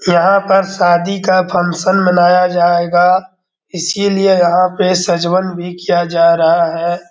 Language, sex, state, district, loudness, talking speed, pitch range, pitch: Hindi, male, Bihar, Darbhanga, -12 LUFS, 135 wpm, 175-185 Hz, 180 Hz